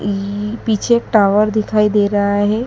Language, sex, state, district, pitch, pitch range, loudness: Hindi, female, Madhya Pradesh, Dhar, 210 Hz, 205-215 Hz, -15 LUFS